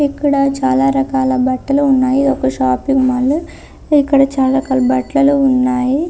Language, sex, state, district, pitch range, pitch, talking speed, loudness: Telugu, female, Andhra Pradesh, Visakhapatnam, 255-275 Hz, 270 Hz, 130 wpm, -14 LUFS